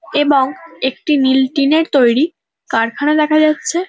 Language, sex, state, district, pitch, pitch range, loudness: Bengali, female, West Bengal, North 24 Parganas, 290 Hz, 265-310 Hz, -14 LUFS